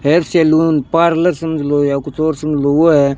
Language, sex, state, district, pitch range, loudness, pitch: Hindi, male, Rajasthan, Bikaner, 145-165 Hz, -14 LUFS, 155 Hz